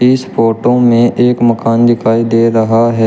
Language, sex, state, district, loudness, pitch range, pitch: Hindi, male, Uttar Pradesh, Shamli, -10 LUFS, 115-120 Hz, 115 Hz